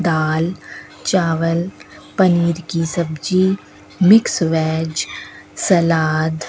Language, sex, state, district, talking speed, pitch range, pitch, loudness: Hindi, female, Rajasthan, Bikaner, 85 wpm, 160-180 Hz, 165 Hz, -17 LUFS